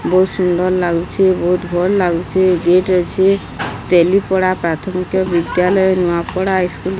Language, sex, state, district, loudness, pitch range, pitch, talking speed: Odia, female, Odisha, Sambalpur, -15 LUFS, 175-190 Hz, 185 Hz, 130 wpm